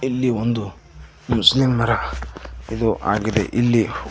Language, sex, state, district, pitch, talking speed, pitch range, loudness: Kannada, male, Karnataka, Koppal, 115 Hz, 90 wpm, 105-120 Hz, -19 LUFS